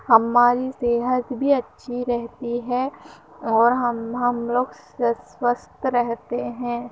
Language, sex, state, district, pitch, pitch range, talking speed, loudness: Hindi, female, Karnataka, Mysore, 245 Hz, 235-250 Hz, 115 wpm, -22 LUFS